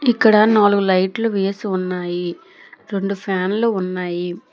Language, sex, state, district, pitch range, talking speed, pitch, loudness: Telugu, female, Telangana, Hyderabad, 185-210 Hz, 105 wpm, 195 Hz, -18 LUFS